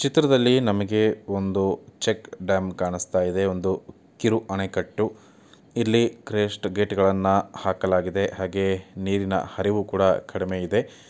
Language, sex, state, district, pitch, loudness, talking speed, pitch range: Kannada, male, Karnataka, Chamarajanagar, 95 Hz, -24 LUFS, 105 wpm, 95-105 Hz